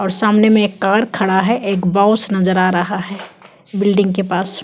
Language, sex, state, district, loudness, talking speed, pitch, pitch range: Hindi, female, Chhattisgarh, Kabirdham, -15 LUFS, 205 wpm, 195 Hz, 190-210 Hz